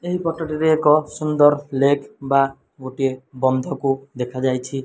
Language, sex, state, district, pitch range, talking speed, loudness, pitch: Odia, male, Odisha, Malkangiri, 130-150 Hz, 160 wpm, -20 LUFS, 140 Hz